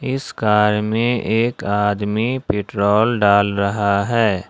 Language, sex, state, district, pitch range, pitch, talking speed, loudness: Hindi, male, Jharkhand, Ranchi, 100-115 Hz, 105 Hz, 120 wpm, -18 LUFS